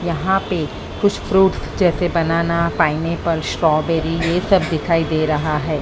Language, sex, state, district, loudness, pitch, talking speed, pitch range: Hindi, male, Maharashtra, Mumbai Suburban, -18 LUFS, 165 Hz, 145 wpm, 160-175 Hz